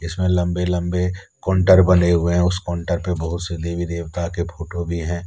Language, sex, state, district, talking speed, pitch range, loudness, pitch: Hindi, male, Jharkhand, Deoghar, 205 wpm, 85-90 Hz, -20 LUFS, 85 Hz